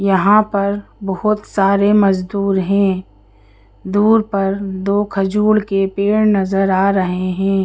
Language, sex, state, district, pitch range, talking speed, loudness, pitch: Hindi, female, Madhya Pradesh, Bhopal, 190-205 Hz, 125 wpm, -16 LUFS, 195 Hz